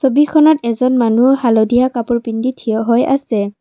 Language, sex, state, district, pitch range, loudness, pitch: Assamese, female, Assam, Kamrup Metropolitan, 230-265 Hz, -14 LUFS, 240 Hz